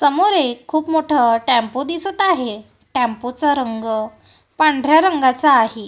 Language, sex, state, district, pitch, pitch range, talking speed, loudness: Marathi, female, Maharashtra, Gondia, 270 Hz, 235-315 Hz, 120 wpm, -17 LUFS